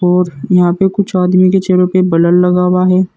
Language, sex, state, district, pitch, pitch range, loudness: Hindi, male, Uttar Pradesh, Saharanpur, 180 Hz, 180-185 Hz, -11 LUFS